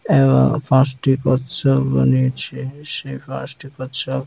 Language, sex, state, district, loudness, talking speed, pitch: Bengali, male, West Bengal, Dakshin Dinajpur, -18 LUFS, 110 wpm, 130 Hz